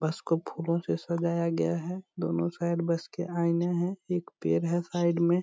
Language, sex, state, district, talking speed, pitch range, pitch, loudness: Hindi, male, Bihar, Purnia, 200 wpm, 165-175 Hz, 170 Hz, -30 LUFS